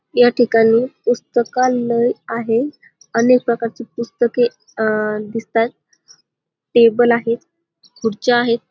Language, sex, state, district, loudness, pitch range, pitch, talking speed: Marathi, female, Maharashtra, Dhule, -17 LUFS, 225-245 Hz, 235 Hz, 90 wpm